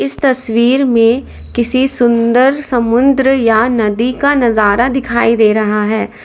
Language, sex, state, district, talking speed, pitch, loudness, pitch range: Hindi, female, Uttar Pradesh, Lalitpur, 135 wpm, 240 Hz, -12 LUFS, 225-260 Hz